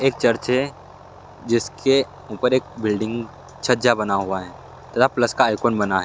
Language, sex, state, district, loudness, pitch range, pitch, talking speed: Hindi, male, Bihar, Lakhisarai, -21 LUFS, 105-130 Hz, 120 Hz, 180 wpm